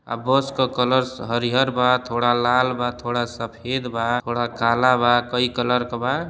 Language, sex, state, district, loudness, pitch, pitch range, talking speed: Bhojpuri, male, Uttar Pradesh, Deoria, -21 LUFS, 125 Hz, 120-125 Hz, 180 wpm